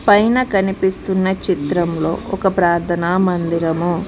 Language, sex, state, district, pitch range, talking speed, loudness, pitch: Telugu, female, Telangana, Mahabubabad, 170-195 Hz, 90 wpm, -17 LUFS, 185 Hz